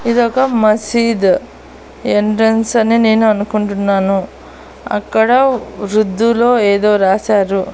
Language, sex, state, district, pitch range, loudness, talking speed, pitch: Telugu, female, Andhra Pradesh, Annamaya, 195-230 Hz, -13 LUFS, 75 wpm, 215 Hz